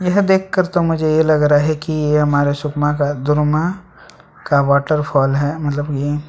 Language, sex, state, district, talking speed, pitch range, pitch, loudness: Hindi, male, Chhattisgarh, Sukma, 180 wpm, 145-160 Hz, 150 Hz, -16 LUFS